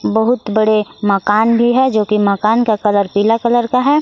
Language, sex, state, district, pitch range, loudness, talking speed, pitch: Hindi, female, Jharkhand, Garhwa, 210-235 Hz, -14 LUFS, 210 wpm, 215 Hz